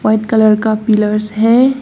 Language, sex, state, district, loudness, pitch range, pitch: Hindi, female, Assam, Hailakandi, -12 LUFS, 215-225 Hz, 220 Hz